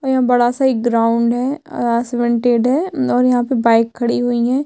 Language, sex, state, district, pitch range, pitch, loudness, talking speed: Hindi, female, Chhattisgarh, Sukma, 235-255 Hz, 245 Hz, -16 LUFS, 180 wpm